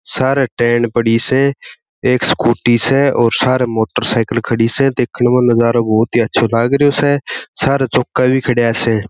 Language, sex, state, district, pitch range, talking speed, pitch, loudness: Marwari, male, Rajasthan, Churu, 115-130 Hz, 165 wpm, 120 Hz, -13 LUFS